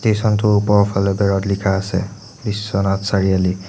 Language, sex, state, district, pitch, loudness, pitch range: Assamese, male, Assam, Sonitpur, 100 Hz, -18 LUFS, 95-105 Hz